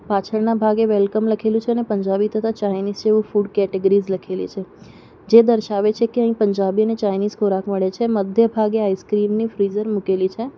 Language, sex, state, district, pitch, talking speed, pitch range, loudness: Gujarati, female, Gujarat, Valsad, 210 Hz, 175 wpm, 200-220 Hz, -19 LUFS